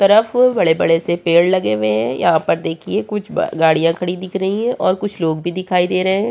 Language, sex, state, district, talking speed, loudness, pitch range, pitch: Hindi, female, Uttar Pradesh, Hamirpur, 230 wpm, -16 LUFS, 165-200 Hz, 180 Hz